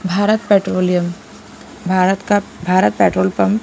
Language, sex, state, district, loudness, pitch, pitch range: Hindi, female, Punjab, Pathankot, -16 LUFS, 185 Hz, 175-200 Hz